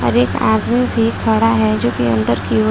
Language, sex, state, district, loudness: Hindi, female, Uttar Pradesh, Muzaffarnagar, -15 LUFS